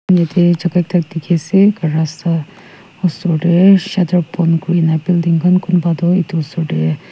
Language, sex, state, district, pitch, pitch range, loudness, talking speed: Nagamese, female, Nagaland, Kohima, 175 Hz, 165-180 Hz, -14 LUFS, 135 wpm